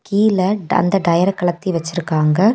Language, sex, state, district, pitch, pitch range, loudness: Tamil, female, Tamil Nadu, Kanyakumari, 180 Hz, 170-195 Hz, -17 LUFS